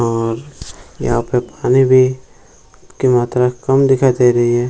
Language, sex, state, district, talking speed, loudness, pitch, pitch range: Hindi, male, Bihar, Jamui, 155 wpm, -14 LUFS, 125 Hz, 120-130 Hz